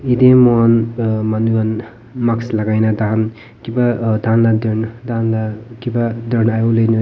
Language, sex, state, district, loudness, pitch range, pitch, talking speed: Nagamese, male, Nagaland, Kohima, -16 LUFS, 110-115 Hz, 115 Hz, 130 wpm